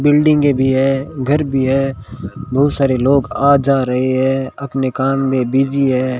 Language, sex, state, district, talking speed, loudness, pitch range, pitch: Hindi, male, Rajasthan, Bikaner, 175 wpm, -15 LUFS, 130-140 Hz, 135 Hz